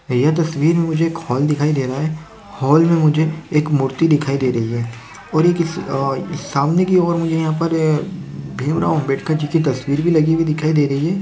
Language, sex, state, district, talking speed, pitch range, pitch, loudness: Hindi, male, Rajasthan, Churu, 220 wpm, 140-165 Hz, 155 Hz, -17 LUFS